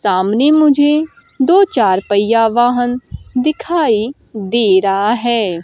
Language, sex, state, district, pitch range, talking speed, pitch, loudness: Hindi, female, Bihar, Kaimur, 210-290 Hz, 105 wpm, 240 Hz, -13 LUFS